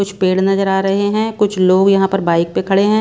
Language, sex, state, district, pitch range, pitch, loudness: Hindi, female, Bihar, West Champaran, 190-200 Hz, 195 Hz, -14 LUFS